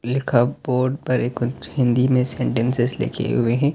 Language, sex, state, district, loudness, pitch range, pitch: Hindi, male, Delhi, New Delhi, -21 LUFS, 120-130 Hz, 125 Hz